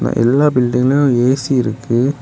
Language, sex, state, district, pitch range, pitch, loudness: Tamil, male, Tamil Nadu, Kanyakumari, 120-135 Hz, 125 Hz, -14 LUFS